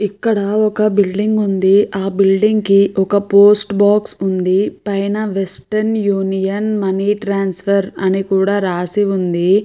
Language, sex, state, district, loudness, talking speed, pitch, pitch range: Telugu, female, Andhra Pradesh, Chittoor, -15 LUFS, 125 wpm, 200 Hz, 195-205 Hz